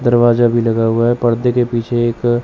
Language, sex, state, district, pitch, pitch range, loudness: Hindi, male, Chandigarh, Chandigarh, 120 Hz, 115-120 Hz, -14 LUFS